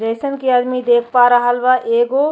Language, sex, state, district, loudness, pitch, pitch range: Bhojpuri, female, Uttar Pradesh, Ghazipur, -14 LUFS, 245 Hz, 240-255 Hz